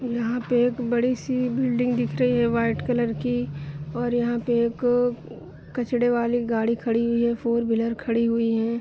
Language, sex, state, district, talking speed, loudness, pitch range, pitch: Hindi, female, Jharkhand, Jamtara, 185 wpm, -24 LUFS, 230-245 Hz, 235 Hz